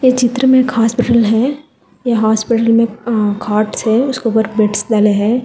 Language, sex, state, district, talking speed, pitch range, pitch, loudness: Hindi, female, Telangana, Hyderabad, 165 wpm, 215-245 Hz, 230 Hz, -14 LUFS